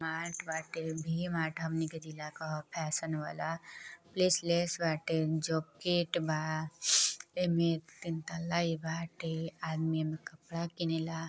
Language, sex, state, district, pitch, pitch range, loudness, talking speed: Bhojpuri, female, Uttar Pradesh, Deoria, 165 Hz, 160-170 Hz, -34 LUFS, 150 wpm